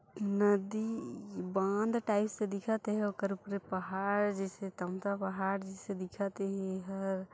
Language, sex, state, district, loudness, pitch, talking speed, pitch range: Hindi, female, Chhattisgarh, Jashpur, -35 LUFS, 200 Hz, 130 wpm, 195-205 Hz